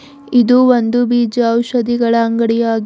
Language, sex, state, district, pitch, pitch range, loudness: Kannada, female, Karnataka, Bidar, 240 Hz, 230-245 Hz, -13 LUFS